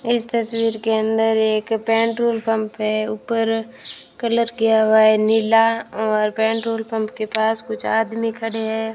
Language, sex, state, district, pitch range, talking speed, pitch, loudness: Hindi, female, Rajasthan, Bikaner, 220-225 Hz, 155 wpm, 225 Hz, -19 LUFS